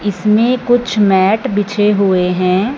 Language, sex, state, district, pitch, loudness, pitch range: Hindi, male, Punjab, Fazilka, 205 Hz, -13 LUFS, 190-225 Hz